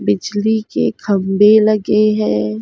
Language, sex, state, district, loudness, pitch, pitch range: Hindi, female, Bihar, Saharsa, -14 LUFS, 210 Hz, 185-215 Hz